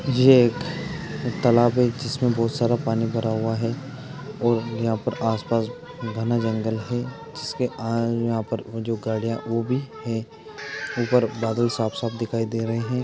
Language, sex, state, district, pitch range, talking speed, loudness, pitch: Hindi, male, Andhra Pradesh, Anantapur, 115-125 Hz, 160 wpm, -24 LUFS, 115 Hz